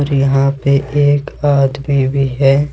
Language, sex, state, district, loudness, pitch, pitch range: Hindi, male, Jharkhand, Ranchi, -14 LUFS, 140 Hz, 135-145 Hz